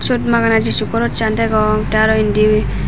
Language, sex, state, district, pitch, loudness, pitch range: Chakma, female, Tripura, Dhalai, 220 Hz, -14 LUFS, 215-230 Hz